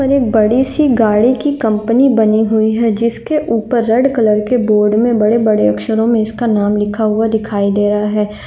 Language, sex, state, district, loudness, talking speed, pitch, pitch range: Hindi, female, Chhattisgarh, Korba, -13 LUFS, 200 wpm, 220 Hz, 210-235 Hz